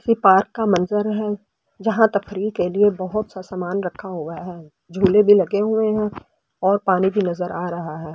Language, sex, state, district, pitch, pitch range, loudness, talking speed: Hindi, female, Delhi, New Delhi, 195 Hz, 180-210 Hz, -20 LUFS, 200 wpm